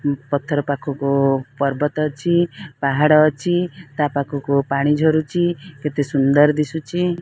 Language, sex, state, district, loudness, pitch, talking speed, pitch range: Odia, female, Odisha, Sambalpur, -19 LUFS, 150 Hz, 110 wpm, 140-160 Hz